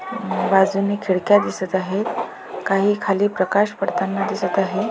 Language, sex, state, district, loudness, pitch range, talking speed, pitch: Marathi, female, Maharashtra, Pune, -20 LUFS, 190-205 Hz, 120 wpm, 195 Hz